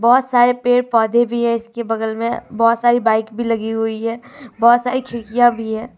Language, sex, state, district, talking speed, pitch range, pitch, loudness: Hindi, female, Jharkhand, Deoghar, 210 wpm, 225-240 Hz, 235 Hz, -17 LUFS